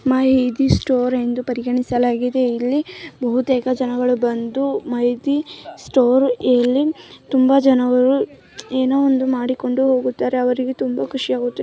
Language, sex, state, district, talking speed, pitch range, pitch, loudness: Kannada, female, Karnataka, Mysore, 115 wpm, 250-265 Hz, 255 Hz, -18 LUFS